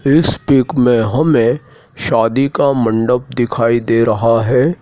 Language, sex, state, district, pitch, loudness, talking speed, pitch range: Hindi, male, Madhya Pradesh, Dhar, 125 Hz, -14 LUFS, 135 wpm, 115-140 Hz